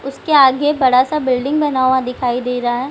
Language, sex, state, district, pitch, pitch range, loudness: Hindi, female, Bihar, Gaya, 260 Hz, 250-290 Hz, -15 LUFS